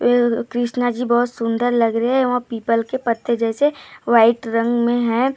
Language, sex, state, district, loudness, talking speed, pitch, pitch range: Hindi, female, Maharashtra, Gondia, -18 LUFS, 190 wpm, 240 Hz, 230-245 Hz